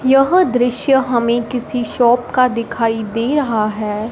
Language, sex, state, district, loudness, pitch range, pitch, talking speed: Hindi, female, Punjab, Fazilka, -16 LUFS, 230-255 Hz, 240 Hz, 145 wpm